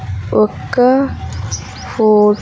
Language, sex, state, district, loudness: Telugu, female, Andhra Pradesh, Sri Satya Sai, -15 LUFS